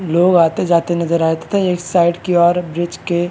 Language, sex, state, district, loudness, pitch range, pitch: Hindi, male, Maharashtra, Chandrapur, -15 LUFS, 170-175 Hz, 175 Hz